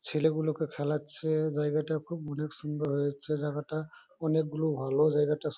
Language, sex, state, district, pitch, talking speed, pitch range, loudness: Bengali, male, West Bengal, Malda, 150 Hz, 110 wpm, 150-155 Hz, -31 LUFS